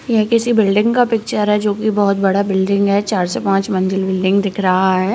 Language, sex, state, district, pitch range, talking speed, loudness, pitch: Hindi, female, Uttarakhand, Uttarkashi, 190-215 Hz, 220 wpm, -15 LUFS, 200 Hz